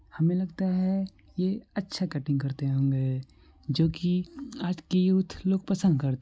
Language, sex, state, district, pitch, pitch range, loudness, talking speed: Maithili, male, Bihar, Supaul, 180 Hz, 145-190 Hz, -28 LUFS, 155 wpm